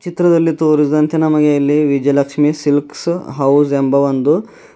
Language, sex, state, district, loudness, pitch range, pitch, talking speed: Kannada, male, Karnataka, Bidar, -14 LUFS, 140-160 Hz, 150 Hz, 115 wpm